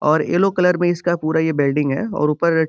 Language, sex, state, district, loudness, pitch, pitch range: Hindi, male, Uttar Pradesh, Gorakhpur, -18 LUFS, 160 Hz, 150-175 Hz